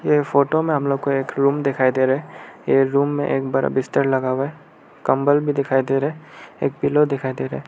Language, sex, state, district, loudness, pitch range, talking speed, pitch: Hindi, male, Arunachal Pradesh, Lower Dibang Valley, -20 LUFS, 135-145 Hz, 255 wpm, 140 Hz